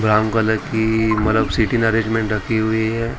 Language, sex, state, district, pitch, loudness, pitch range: Hindi, male, Maharashtra, Mumbai Suburban, 110 Hz, -18 LUFS, 110-115 Hz